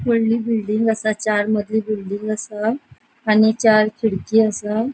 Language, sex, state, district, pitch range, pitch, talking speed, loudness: Konkani, female, Goa, North and South Goa, 210-225 Hz, 215 Hz, 135 wpm, -19 LUFS